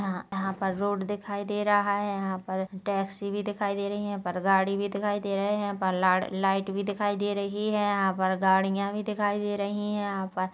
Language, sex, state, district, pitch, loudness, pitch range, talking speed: Hindi, female, Chhattisgarh, Kabirdham, 200 Hz, -28 LUFS, 190-205 Hz, 245 wpm